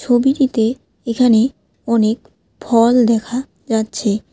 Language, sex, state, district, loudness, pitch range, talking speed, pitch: Bengali, female, West Bengal, Alipurduar, -16 LUFS, 225-250 Hz, 85 wpm, 230 Hz